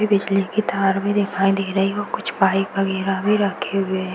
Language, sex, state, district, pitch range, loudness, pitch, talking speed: Hindi, female, Uttar Pradesh, Varanasi, 195-200 Hz, -20 LUFS, 195 Hz, 230 wpm